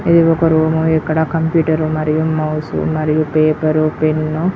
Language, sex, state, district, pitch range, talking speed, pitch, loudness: Telugu, female, Andhra Pradesh, Guntur, 155-160 Hz, 130 wpm, 155 Hz, -15 LUFS